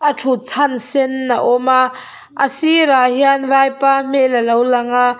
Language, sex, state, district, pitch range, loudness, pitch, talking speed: Mizo, female, Mizoram, Aizawl, 245-275 Hz, -14 LUFS, 265 Hz, 185 wpm